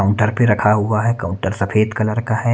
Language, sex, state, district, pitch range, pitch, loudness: Hindi, male, Haryana, Charkhi Dadri, 100-110 Hz, 105 Hz, -17 LUFS